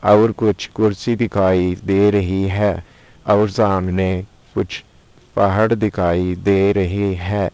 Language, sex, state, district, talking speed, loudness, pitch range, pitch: Hindi, male, Uttar Pradesh, Saharanpur, 120 wpm, -18 LUFS, 95-105 Hz, 100 Hz